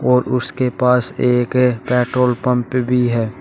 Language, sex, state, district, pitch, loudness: Hindi, male, Uttar Pradesh, Shamli, 125 Hz, -17 LUFS